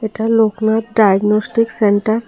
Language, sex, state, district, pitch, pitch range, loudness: Bengali, female, Tripura, South Tripura, 220 Hz, 210-225 Hz, -15 LUFS